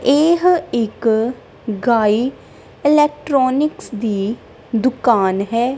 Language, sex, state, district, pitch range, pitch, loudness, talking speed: Punjabi, female, Punjab, Kapurthala, 220-280 Hz, 240 Hz, -17 LUFS, 75 wpm